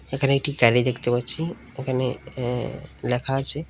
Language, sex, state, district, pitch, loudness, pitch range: Bengali, male, Tripura, West Tripura, 130 Hz, -24 LUFS, 125-140 Hz